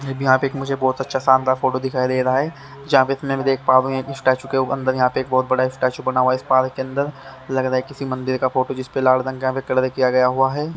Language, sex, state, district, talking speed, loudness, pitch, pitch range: Hindi, male, Haryana, Charkhi Dadri, 305 wpm, -19 LUFS, 130 Hz, 130-135 Hz